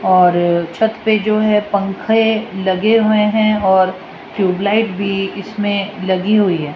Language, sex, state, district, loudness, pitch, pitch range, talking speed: Hindi, female, Rajasthan, Jaipur, -15 LUFS, 200 Hz, 190-215 Hz, 140 wpm